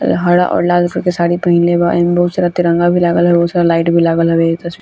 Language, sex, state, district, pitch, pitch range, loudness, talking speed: Bhojpuri, female, Bihar, Gopalganj, 175 Hz, 170-175 Hz, -12 LUFS, 250 wpm